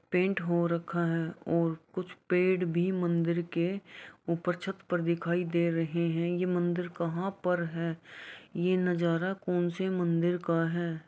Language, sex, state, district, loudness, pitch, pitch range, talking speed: Hindi, male, Uttar Pradesh, Jyotiba Phule Nagar, -31 LUFS, 175 Hz, 170-180 Hz, 150 wpm